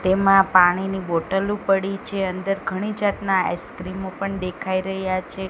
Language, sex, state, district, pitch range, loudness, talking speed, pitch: Gujarati, female, Gujarat, Gandhinagar, 185-195 Hz, -22 LUFS, 140 wpm, 190 Hz